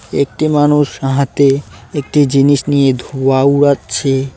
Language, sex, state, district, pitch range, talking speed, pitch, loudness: Bengali, male, West Bengal, Cooch Behar, 135-145 Hz, 110 wpm, 140 Hz, -13 LUFS